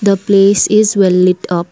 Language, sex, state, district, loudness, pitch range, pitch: English, female, Assam, Kamrup Metropolitan, -11 LUFS, 180-200 Hz, 195 Hz